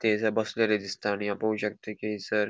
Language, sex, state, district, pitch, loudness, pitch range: Konkani, male, Goa, North and South Goa, 105 Hz, -29 LUFS, 105-110 Hz